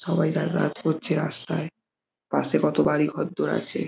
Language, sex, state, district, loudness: Bengali, male, West Bengal, Jhargram, -24 LUFS